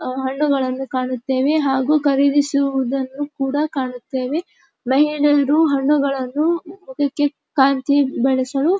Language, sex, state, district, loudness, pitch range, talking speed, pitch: Kannada, female, Karnataka, Dharwad, -19 LUFS, 265-295 Hz, 75 wpm, 275 Hz